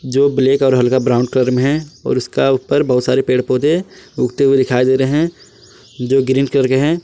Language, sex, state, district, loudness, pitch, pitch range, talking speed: Hindi, male, Jharkhand, Palamu, -15 LUFS, 130 Hz, 130-140 Hz, 220 wpm